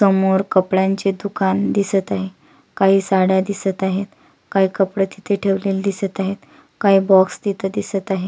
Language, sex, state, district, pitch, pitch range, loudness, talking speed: Marathi, female, Maharashtra, Solapur, 195 Hz, 190-200 Hz, -18 LUFS, 145 wpm